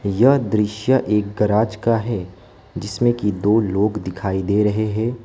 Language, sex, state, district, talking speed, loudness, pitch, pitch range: Hindi, male, West Bengal, Alipurduar, 160 wpm, -19 LUFS, 105 Hz, 105-115 Hz